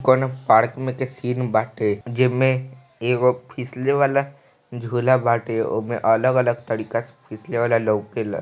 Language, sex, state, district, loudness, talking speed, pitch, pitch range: Bhojpuri, male, Bihar, East Champaran, -21 LUFS, 150 wpm, 125 Hz, 115-130 Hz